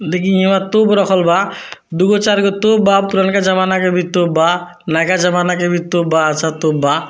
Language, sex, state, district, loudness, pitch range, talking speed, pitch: Bhojpuri, male, Bihar, Muzaffarpur, -14 LUFS, 170-195 Hz, 195 wpm, 180 Hz